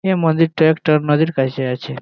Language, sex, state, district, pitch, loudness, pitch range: Bengali, male, West Bengal, Jalpaiguri, 155 Hz, -16 LUFS, 140-160 Hz